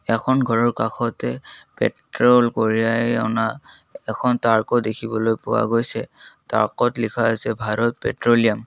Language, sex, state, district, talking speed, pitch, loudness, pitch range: Assamese, male, Assam, Kamrup Metropolitan, 120 wpm, 115 Hz, -20 LUFS, 110-120 Hz